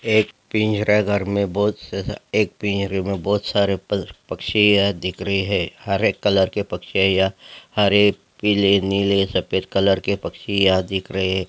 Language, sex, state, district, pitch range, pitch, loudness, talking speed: Hindi, male, Bihar, Gopalganj, 95-105 Hz, 100 Hz, -20 LUFS, 165 wpm